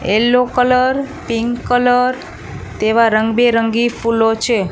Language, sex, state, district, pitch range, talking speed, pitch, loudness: Gujarati, female, Gujarat, Gandhinagar, 225-250 Hz, 115 wpm, 235 Hz, -15 LUFS